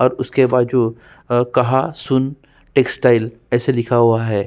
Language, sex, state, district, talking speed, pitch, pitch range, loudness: Hindi, male, Uttarakhand, Tehri Garhwal, 150 wpm, 125 Hz, 120-130 Hz, -17 LUFS